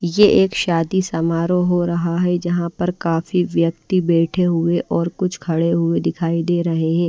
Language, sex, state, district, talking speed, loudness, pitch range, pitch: Hindi, female, Maharashtra, Washim, 180 wpm, -18 LUFS, 165-180 Hz, 170 Hz